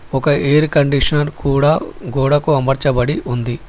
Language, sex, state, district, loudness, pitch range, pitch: Telugu, male, Telangana, Hyderabad, -15 LUFS, 135-150 Hz, 140 Hz